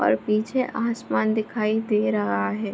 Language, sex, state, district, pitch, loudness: Hindi, female, Bihar, Begusarai, 215 Hz, -24 LUFS